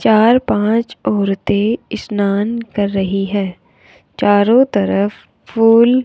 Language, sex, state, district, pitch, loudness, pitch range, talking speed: Hindi, male, Rajasthan, Jaipur, 205 Hz, -15 LUFS, 200-230 Hz, 110 wpm